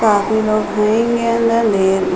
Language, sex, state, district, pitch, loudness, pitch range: Hindi, female, Uttar Pradesh, Hamirpur, 215 Hz, -15 LUFS, 210-230 Hz